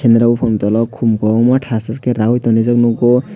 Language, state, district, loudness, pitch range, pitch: Kokborok, Tripura, West Tripura, -14 LUFS, 115-120 Hz, 115 Hz